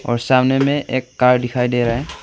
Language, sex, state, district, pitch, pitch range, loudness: Hindi, male, Arunachal Pradesh, Longding, 125 Hz, 120-130 Hz, -17 LUFS